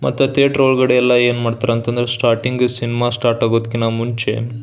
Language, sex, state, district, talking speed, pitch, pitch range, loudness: Kannada, male, Karnataka, Belgaum, 180 wpm, 120 Hz, 115-125 Hz, -16 LUFS